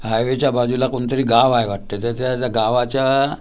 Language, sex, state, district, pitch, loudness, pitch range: Marathi, male, Maharashtra, Gondia, 125 Hz, -18 LUFS, 115-130 Hz